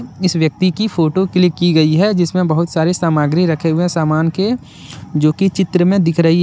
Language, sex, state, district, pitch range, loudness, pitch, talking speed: Hindi, male, Jharkhand, Deoghar, 160-185 Hz, -15 LUFS, 170 Hz, 215 wpm